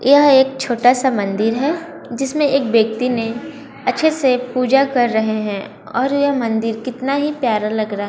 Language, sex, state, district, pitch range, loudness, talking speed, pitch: Hindi, female, Chhattisgarh, Raipur, 225-275 Hz, -17 LUFS, 180 wpm, 255 Hz